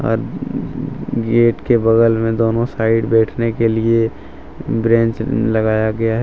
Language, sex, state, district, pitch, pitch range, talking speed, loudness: Hindi, male, Jharkhand, Deoghar, 115 Hz, 110-115 Hz, 135 wpm, -16 LUFS